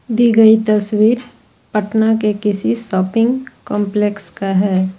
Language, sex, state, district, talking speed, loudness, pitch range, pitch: Hindi, female, Jharkhand, Ranchi, 120 wpm, -15 LUFS, 205-225 Hz, 210 Hz